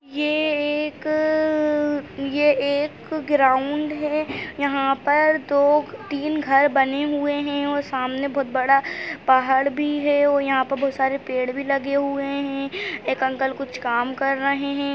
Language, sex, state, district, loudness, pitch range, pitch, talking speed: Hindi, female, Uttarakhand, Tehri Garhwal, -21 LUFS, 275-295 Hz, 280 Hz, 150 wpm